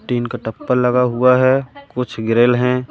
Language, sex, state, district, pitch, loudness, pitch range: Hindi, male, Madhya Pradesh, Katni, 125 Hz, -16 LUFS, 120-125 Hz